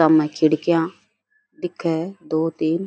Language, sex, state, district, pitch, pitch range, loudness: Rajasthani, female, Rajasthan, Churu, 165 Hz, 160-190 Hz, -21 LUFS